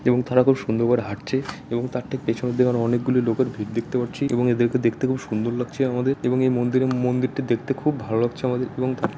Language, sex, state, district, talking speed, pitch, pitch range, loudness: Bengali, male, West Bengal, Malda, 220 wpm, 125 Hz, 120-130 Hz, -23 LUFS